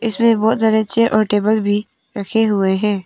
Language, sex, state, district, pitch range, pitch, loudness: Hindi, female, Arunachal Pradesh, Papum Pare, 205-225 Hz, 215 Hz, -16 LUFS